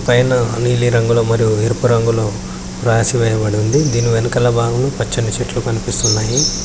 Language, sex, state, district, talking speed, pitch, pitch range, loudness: Telugu, male, Telangana, Mahabubabad, 135 wpm, 115 Hz, 110-120 Hz, -15 LUFS